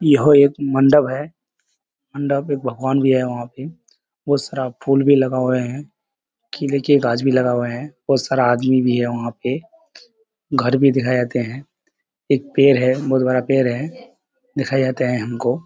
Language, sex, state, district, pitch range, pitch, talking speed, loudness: Hindi, male, Bihar, Kishanganj, 125-145 Hz, 135 Hz, 190 wpm, -18 LUFS